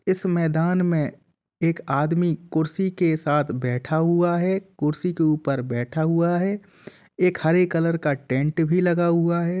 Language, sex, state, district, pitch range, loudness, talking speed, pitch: Hindi, male, Uttar Pradesh, Jalaun, 150-180 Hz, -22 LUFS, 160 wpm, 165 Hz